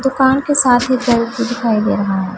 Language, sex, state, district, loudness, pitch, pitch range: Hindi, female, Punjab, Pathankot, -14 LUFS, 240 Hz, 220-265 Hz